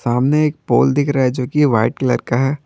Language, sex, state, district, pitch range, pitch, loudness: Hindi, male, Jharkhand, Garhwa, 125-145 Hz, 135 Hz, -16 LUFS